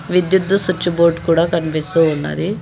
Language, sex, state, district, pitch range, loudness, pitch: Telugu, female, Telangana, Hyderabad, 160-180 Hz, -16 LUFS, 170 Hz